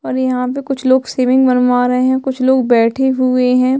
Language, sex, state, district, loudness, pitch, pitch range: Hindi, female, Chhattisgarh, Sukma, -14 LUFS, 255 Hz, 250-260 Hz